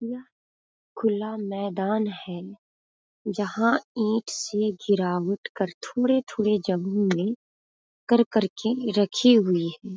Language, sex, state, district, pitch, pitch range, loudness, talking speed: Hindi, female, Bihar, Muzaffarpur, 205 Hz, 190-225 Hz, -25 LUFS, 115 wpm